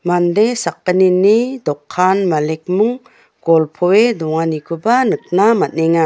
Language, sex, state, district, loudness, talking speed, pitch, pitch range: Garo, female, Meghalaya, West Garo Hills, -15 LUFS, 80 wpm, 180 Hz, 165-220 Hz